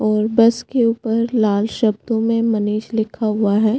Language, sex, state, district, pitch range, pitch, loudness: Hindi, female, Chhattisgarh, Bastar, 215-230 Hz, 225 Hz, -18 LUFS